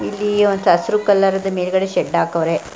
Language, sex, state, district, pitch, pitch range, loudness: Kannada, female, Karnataka, Belgaum, 195 Hz, 185-205 Hz, -17 LUFS